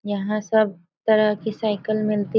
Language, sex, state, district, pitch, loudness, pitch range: Hindi, female, Bihar, Sitamarhi, 215 Hz, -22 LUFS, 205-215 Hz